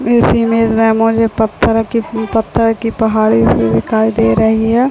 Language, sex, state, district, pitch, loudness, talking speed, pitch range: Hindi, female, Chhattisgarh, Bilaspur, 225 Hz, -12 LUFS, 160 wpm, 220-230 Hz